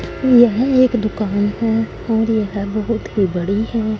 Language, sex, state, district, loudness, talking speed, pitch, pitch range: Hindi, female, Punjab, Fazilka, -17 LUFS, 165 wpm, 220 Hz, 205-230 Hz